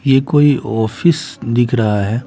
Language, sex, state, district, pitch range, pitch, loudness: Hindi, male, Bihar, Patna, 110-145 Hz, 120 Hz, -15 LUFS